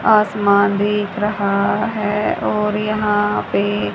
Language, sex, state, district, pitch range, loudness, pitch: Hindi, female, Haryana, Charkhi Dadri, 200-210 Hz, -17 LUFS, 210 Hz